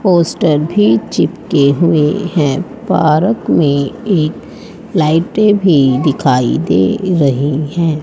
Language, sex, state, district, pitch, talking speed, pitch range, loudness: Hindi, male, Haryana, Rohtak, 160 Hz, 105 wpm, 145-195 Hz, -13 LUFS